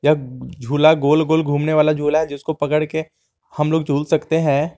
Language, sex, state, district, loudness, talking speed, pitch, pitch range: Hindi, male, Jharkhand, Garhwa, -18 LUFS, 175 wpm, 150 Hz, 145-160 Hz